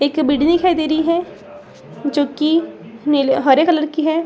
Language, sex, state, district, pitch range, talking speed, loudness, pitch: Hindi, female, Bihar, Saran, 285-330 Hz, 185 wpm, -16 LUFS, 310 Hz